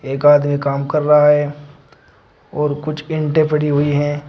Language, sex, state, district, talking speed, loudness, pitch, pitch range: Hindi, male, Uttar Pradesh, Shamli, 170 wpm, -16 LUFS, 145 Hz, 145-150 Hz